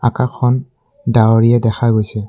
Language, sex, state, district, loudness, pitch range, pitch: Assamese, male, Assam, Kamrup Metropolitan, -14 LUFS, 115-125 Hz, 120 Hz